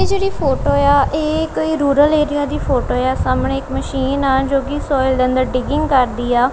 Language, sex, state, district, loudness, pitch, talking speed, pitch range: Punjabi, female, Punjab, Kapurthala, -16 LUFS, 280 Hz, 210 wpm, 260-300 Hz